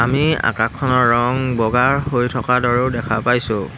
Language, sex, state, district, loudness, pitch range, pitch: Assamese, male, Assam, Hailakandi, -17 LUFS, 115-130 Hz, 125 Hz